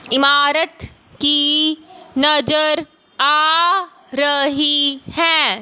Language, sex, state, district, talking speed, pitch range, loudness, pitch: Hindi, female, Punjab, Fazilka, 65 wpm, 285-320 Hz, -14 LUFS, 300 Hz